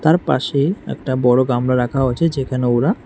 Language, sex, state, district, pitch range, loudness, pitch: Bengali, male, Tripura, West Tripura, 125-145 Hz, -17 LUFS, 130 Hz